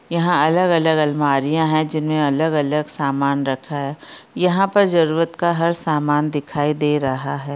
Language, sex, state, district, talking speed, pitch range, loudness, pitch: Hindi, female, Bihar, Darbhanga, 150 wpm, 145-165 Hz, -18 LUFS, 155 Hz